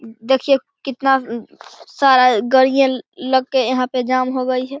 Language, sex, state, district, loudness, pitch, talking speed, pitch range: Hindi, male, Bihar, Begusarai, -16 LUFS, 260 Hz, 140 wpm, 255-270 Hz